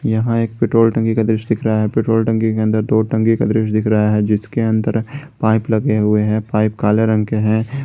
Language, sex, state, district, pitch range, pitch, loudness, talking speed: Hindi, male, Jharkhand, Garhwa, 110-115 Hz, 110 Hz, -16 LUFS, 235 wpm